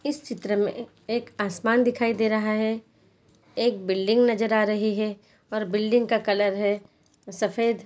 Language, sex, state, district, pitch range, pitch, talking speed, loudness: Hindi, female, Bihar, Jahanabad, 205-230 Hz, 215 Hz, 150 wpm, -25 LUFS